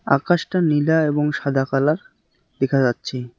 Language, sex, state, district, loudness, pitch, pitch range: Bengali, male, West Bengal, Alipurduar, -20 LUFS, 140 Hz, 135-155 Hz